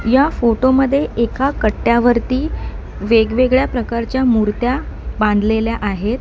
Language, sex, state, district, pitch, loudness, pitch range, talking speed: Marathi, female, Maharashtra, Mumbai Suburban, 235 Hz, -16 LUFS, 220-260 Hz, 85 wpm